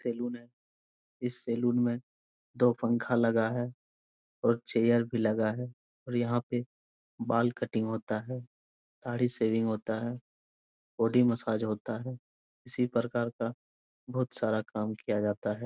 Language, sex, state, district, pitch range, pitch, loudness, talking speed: Hindi, male, Bihar, Lakhisarai, 105-120 Hz, 115 Hz, -31 LUFS, 150 wpm